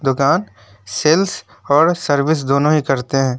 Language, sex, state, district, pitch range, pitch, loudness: Hindi, male, West Bengal, Alipurduar, 130-150 Hz, 140 Hz, -16 LUFS